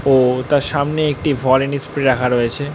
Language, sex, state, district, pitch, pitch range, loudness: Bengali, male, West Bengal, North 24 Parganas, 135 Hz, 130-145 Hz, -17 LUFS